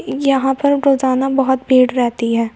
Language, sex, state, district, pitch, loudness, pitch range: Hindi, female, Uttar Pradesh, Muzaffarnagar, 260 Hz, -15 LUFS, 250-270 Hz